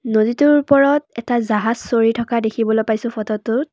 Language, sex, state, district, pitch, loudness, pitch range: Assamese, female, Assam, Kamrup Metropolitan, 235 Hz, -17 LUFS, 220-255 Hz